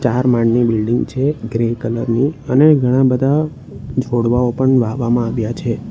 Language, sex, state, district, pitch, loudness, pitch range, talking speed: Gujarati, male, Gujarat, Valsad, 125 Hz, -16 LUFS, 115-130 Hz, 150 wpm